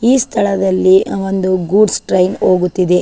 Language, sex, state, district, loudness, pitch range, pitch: Kannada, female, Karnataka, Chamarajanagar, -13 LUFS, 185-200 Hz, 190 Hz